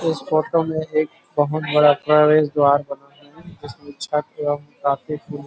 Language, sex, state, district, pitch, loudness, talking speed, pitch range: Hindi, male, Chhattisgarh, Rajnandgaon, 150 Hz, -19 LUFS, 120 wpm, 145-155 Hz